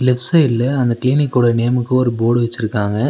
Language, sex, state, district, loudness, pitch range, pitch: Tamil, male, Tamil Nadu, Nilgiris, -15 LUFS, 115-130 Hz, 120 Hz